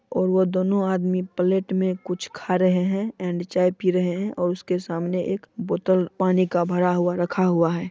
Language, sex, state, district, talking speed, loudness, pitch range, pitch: Hindi, female, Bihar, Supaul, 205 wpm, -23 LUFS, 180-185 Hz, 185 Hz